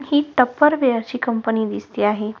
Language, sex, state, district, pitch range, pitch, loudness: Marathi, female, Maharashtra, Solapur, 220-275 Hz, 245 Hz, -19 LUFS